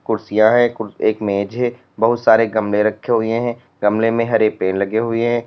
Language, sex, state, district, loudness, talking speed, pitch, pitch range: Hindi, male, Uttar Pradesh, Lalitpur, -17 LUFS, 195 wpm, 110 Hz, 105-115 Hz